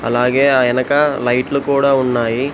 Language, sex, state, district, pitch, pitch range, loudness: Telugu, male, Telangana, Hyderabad, 130 Hz, 125-140 Hz, -15 LUFS